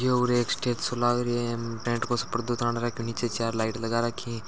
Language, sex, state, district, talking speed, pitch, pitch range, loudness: Marwari, male, Rajasthan, Churu, 265 wpm, 120 Hz, 115-120 Hz, -28 LUFS